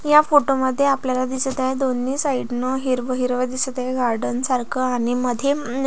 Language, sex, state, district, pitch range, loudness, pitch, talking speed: Marathi, female, Maharashtra, Pune, 250-270 Hz, -21 LUFS, 255 Hz, 175 wpm